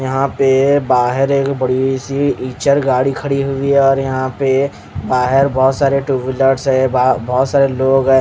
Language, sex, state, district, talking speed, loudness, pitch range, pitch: Hindi, male, Odisha, Khordha, 175 wpm, -14 LUFS, 130-140 Hz, 135 Hz